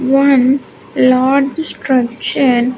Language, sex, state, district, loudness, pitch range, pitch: English, female, Andhra Pradesh, Sri Satya Sai, -13 LUFS, 255-275 Hz, 260 Hz